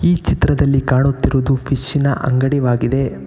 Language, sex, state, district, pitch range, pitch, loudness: Kannada, male, Karnataka, Bangalore, 130-140 Hz, 135 Hz, -16 LUFS